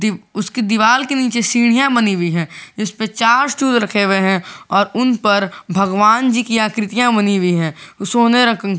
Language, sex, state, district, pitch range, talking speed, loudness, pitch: Hindi, male, Jharkhand, Garhwa, 195-235 Hz, 185 wpm, -15 LUFS, 215 Hz